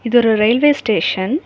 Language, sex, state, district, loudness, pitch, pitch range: Tamil, female, Tamil Nadu, Kanyakumari, -15 LUFS, 230 Hz, 215-270 Hz